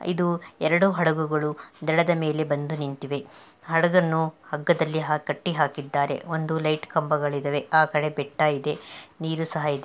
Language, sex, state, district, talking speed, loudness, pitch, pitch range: Kannada, female, Karnataka, Belgaum, 135 wpm, -25 LUFS, 155 Hz, 150-160 Hz